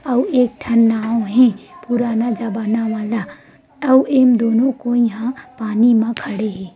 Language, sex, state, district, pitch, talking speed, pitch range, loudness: Chhattisgarhi, female, Chhattisgarh, Rajnandgaon, 235 Hz, 160 wpm, 225-250 Hz, -17 LUFS